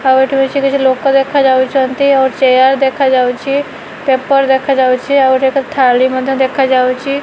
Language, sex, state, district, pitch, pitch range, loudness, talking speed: Odia, female, Odisha, Malkangiri, 265 Hz, 260-275 Hz, -11 LUFS, 140 wpm